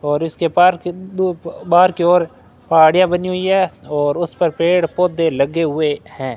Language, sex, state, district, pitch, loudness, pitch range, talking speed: Hindi, male, Rajasthan, Bikaner, 170 Hz, -16 LUFS, 155-180 Hz, 160 wpm